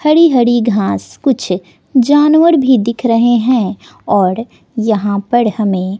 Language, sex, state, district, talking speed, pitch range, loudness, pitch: Hindi, female, Bihar, West Champaran, 130 wpm, 200-255 Hz, -12 LUFS, 230 Hz